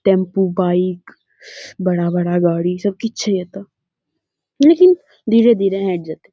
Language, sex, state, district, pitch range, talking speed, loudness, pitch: Maithili, female, Bihar, Saharsa, 175-205 Hz, 125 wpm, -16 LUFS, 190 Hz